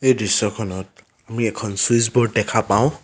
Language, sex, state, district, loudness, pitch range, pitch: Assamese, male, Assam, Sonitpur, -19 LUFS, 105-120 Hz, 110 Hz